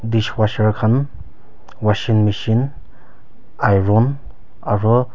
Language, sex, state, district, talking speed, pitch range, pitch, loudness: Nagamese, male, Nagaland, Kohima, 80 wpm, 105-125 Hz, 110 Hz, -18 LUFS